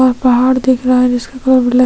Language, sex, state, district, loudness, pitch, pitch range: Hindi, female, Chhattisgarh, Sukma, -12 LUFS, 255 Hz, 250-260 Hz